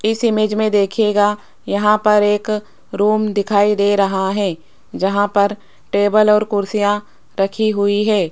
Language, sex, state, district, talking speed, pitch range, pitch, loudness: Hindi, female, Rajasthan, Jaipur, 145 wpm, 200-215 Hz, 205 Hz, -16 LUFS